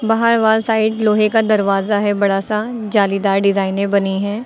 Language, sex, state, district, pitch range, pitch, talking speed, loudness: Hindi, female, Uttar Pradesh, Lucknow, 200-220 Hz, 210 Hz, 175 wpm, -16 LUFS